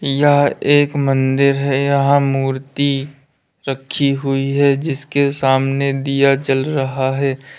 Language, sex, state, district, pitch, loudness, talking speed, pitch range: Hindi, male, Uttar Pradesh, Lalitpur, 140 Hz, -16 LUFS, 120 wpm, 135-140 Hz